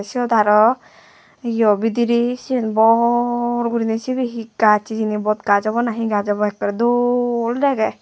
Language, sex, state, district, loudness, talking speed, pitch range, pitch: Chakma, female, Tripura, West Tripura, -18 LUFS, 155 wpm, 215-240 Hz, 230 Hz